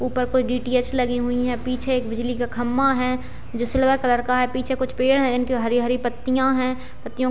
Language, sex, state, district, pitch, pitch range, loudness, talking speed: Hindi, female, Bihar, Jahanabad, 250 Hz, 245-255 Hz, -22 LUFS, 220 wpm